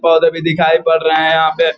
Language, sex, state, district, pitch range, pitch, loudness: Hindi, male, Bihar, Gopalganj, 160-165 Hz, 165 Hz, -12 LUFS